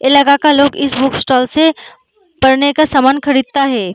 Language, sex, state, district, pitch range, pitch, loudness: Hindi, female, Uttar Pradesh, Muzaffarnagar, 265-300 Hz, 280 Hz, -12 LUFS